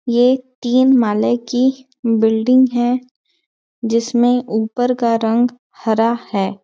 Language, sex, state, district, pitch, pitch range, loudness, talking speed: Hindi, female, Chhattisgarh, Balrampur, 240 Hz, 230-255 Hz, -16 LUFS, 120 wpm